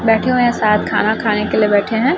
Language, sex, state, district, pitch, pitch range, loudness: Hindi, female, Chhattisgarh, Raipur, 220 Hz, 210-230 Hz, -15 LUFS